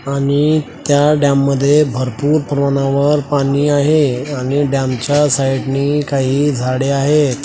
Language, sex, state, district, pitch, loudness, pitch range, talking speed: Marathi, male, Maharashtra, Washim, 140 Hz, -14 LUFS, 135-145 Hz, 130 wpm